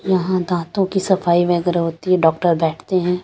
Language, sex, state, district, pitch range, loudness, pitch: Hindi, female, Punjab, Pathankot, 170-185 Hz, -18 LUFS, 175 Hz